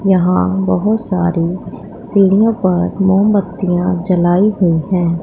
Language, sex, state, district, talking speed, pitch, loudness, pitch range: Hindi, female, Punjab, Pathankot, 105 wpm, 185 Hz, -14 LUFS, 175-195 Hz